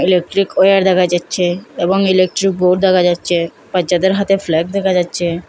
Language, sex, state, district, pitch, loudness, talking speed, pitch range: Bengali, female, Assam, Hailakandi, 180 Hz, -14 LUFS, 155 wpm, 175-190 Hz